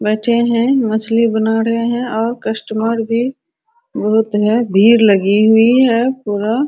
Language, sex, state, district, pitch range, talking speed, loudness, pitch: Hindi, female, Bihar, Araria, 220-240 Hz, 145 wpm, -14 LUFS, 230 Hz